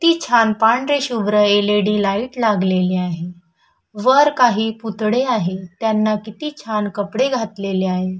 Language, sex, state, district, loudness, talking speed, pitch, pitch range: Marathi, female, Maharashtra, Chandrapur, -18 LUFS, 145 wpm, 215 Hz, 195-240 Hz